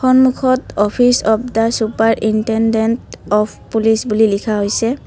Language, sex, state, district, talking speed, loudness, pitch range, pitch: Assamese, female, Assam, Kamrup Metropolitan, 130 wpm, -15 LUFS, 215-245 Hz, 225 Hz